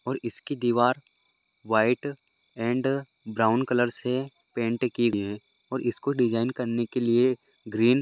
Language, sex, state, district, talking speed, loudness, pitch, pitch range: Hindi, male, Maharashtra, Dhule, 150 wpm, -27 LUFS, 120 Hz, 115-130 Hz